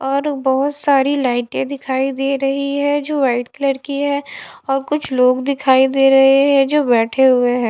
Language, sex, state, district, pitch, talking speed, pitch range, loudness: Hindi, female, Haryana, Charkhi Dadri, 270 Hz, 185 wpm, 265-280 Hz, -16 LUFS